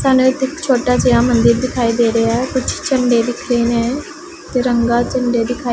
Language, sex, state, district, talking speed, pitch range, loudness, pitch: Punjabi, female, Punjab, Pathankot, 190 wpm, 235-260 Hz, -15 LUFS, 245 Hz